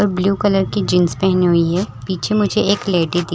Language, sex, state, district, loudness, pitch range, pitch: Hindi, female, Chhattisgarh, Rajnandgaon, -17 LUFS, 175-200 Hz, 190 Hz